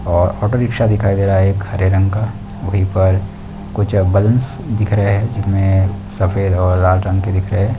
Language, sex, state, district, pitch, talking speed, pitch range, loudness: Hindi, male, Jharkhand, Sahebganj, 100 Hz, 210 wpm, 95-105 Hz, -16 LUFS